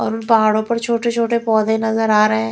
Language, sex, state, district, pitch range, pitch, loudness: Hindi, female, Chhattisgarh, Raipur, 215-235 Hz, 225 Hz, -16 LUFS